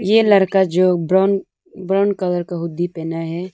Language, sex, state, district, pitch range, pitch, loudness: Hindi, female, Arunachal Pradesh, Lower Dibang Valley, 175-195 Hz, 185 Hz, -17 LUFS